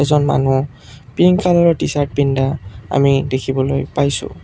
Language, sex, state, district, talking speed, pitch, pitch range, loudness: Assamese, male, Assam, Kamrup Metropolitan, 120 wpm, 140 Hz, 135-145 Hz, -16 LUFS